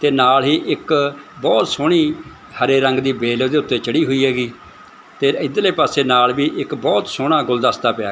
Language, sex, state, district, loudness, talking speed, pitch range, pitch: Punjabi, male, Punjab, Fazilka, -17 LUFS, 190 wpm, 125-145 Hz, 135 Hz